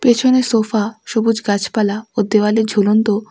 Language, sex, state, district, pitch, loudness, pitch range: Bengali, female, West Bengal, Alipurduar, 220 Hz, -16 LUFS, 210-225 Hz